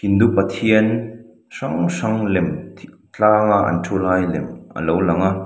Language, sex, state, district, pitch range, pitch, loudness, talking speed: Mizo, male, Mizoram, Aizawl, 90-110 Hz, 100 Hz, -18 LUFS, 155 wpm